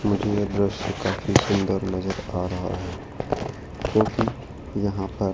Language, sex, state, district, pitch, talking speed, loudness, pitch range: Hindi, male, Madhya Pradesh, Dhar, 100 Hz, 135 wpm, -25 LUFS, 95-110 Hz